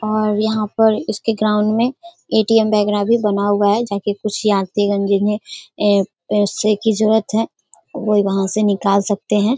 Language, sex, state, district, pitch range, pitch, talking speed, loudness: Hindi, female, Bihar, Darbhanga, 205-220 Hz, 210 Hz, 175 wpm, -17 LUFS